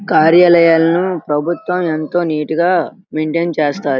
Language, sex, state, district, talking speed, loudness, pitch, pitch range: Telugu, male, Andhra Pradesh, Srikakulam, 105 wpm, -14 LUFS, 165 Hz, 155-175 Hz